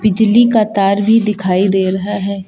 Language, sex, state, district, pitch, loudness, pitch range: Hindi, male, Uttar Pradesh, Lucknow, 200 Hz, -13 LUFS, 195-215 Hz